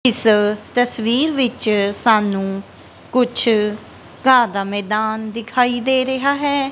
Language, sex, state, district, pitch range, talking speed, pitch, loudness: Punjabi, female, Punjab, Kapurthala, 210-255 Hz, 105 wpm, 230 Hz, -17 LUFS